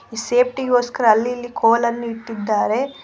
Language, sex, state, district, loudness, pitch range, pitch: Kannada, female, Karnataka, Koppal, -19 LUFS, 225-245 Hz, 235 Hz